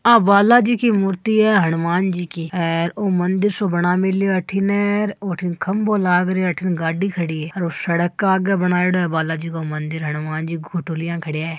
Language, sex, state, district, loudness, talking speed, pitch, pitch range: Marwari, female, Rajasthan, Churu, -19 LUFS, 210 wpm, 180 Hz, 165-195 Hz